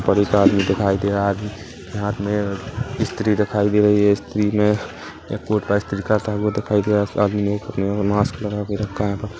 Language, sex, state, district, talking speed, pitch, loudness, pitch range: Hindi, male, Chhattisgarh, Kabirdham, 245 wpm, 105 Hz, -20 LUFS, 100-105 Hz